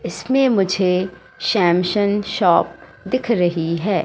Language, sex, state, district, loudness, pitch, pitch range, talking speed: Hindi, female, Madhya Pradesh, Katni, -18 LUFS, 195 Hz, 175-210 Hz, 105 wpm